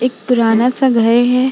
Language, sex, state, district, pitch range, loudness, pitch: Hindi, female, Bihar, Vaishali, 235-255 Hz, -13 LUFS, 245 Hz